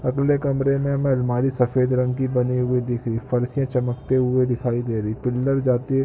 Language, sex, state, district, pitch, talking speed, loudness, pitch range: Hindi, male, Jharkhand, Sahebganj, 125 Hz, 190 wpm, -22 LUFS, 125-135 Hz